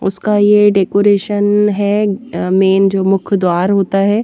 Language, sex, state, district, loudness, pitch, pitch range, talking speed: Hindi, female, Haryana, Jhajjar, -13 LUFS, 200 Hz, 195-205 Hz, 140 wpm